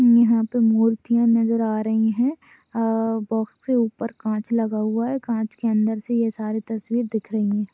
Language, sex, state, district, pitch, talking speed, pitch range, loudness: Hindi, female, Maharashtra, Aurangabad, 225 Hz, 200 wpm, 220-235 Hz, -22 LUFS